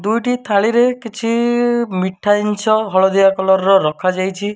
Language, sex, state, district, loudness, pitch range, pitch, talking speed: Odia, male, Odisha, Malkangiri, -15 LUFS, 190-230 Hz, 205 Hz, 120 wpm